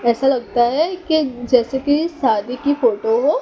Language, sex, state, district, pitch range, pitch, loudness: Hindi, male, Gujarat, Gandhinagar, 245-325 Hz, 275 Hz, -18 LUFS